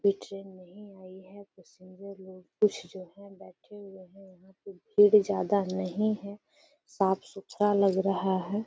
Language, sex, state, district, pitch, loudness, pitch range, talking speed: Hindi, female, Bihar, Gaya, 195 Hz, -27 LUFS, 185-205 Hz, 165 wpm